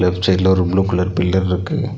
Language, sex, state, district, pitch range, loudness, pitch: Tamil, male, Tamil Nadu, Nilgiris, 90-95 Hz, -17 LUFS, 95 Hz